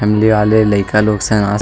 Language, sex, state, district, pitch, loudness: Chhattisgarhi, male, Chhattisgarh, Sarguja, 105 Hz, -13 LUFS